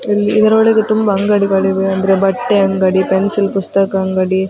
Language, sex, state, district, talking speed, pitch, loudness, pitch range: Kannada, female, Karnataka, Dakshina Kannada, 160 wpm, 195 Hz, -13 LUFS, 190-205 Hz